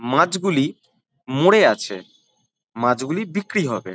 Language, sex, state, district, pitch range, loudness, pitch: Bengali, male, West Bengal, Kolkata, 125-195 Hz, -20 LUFS, 135 Hz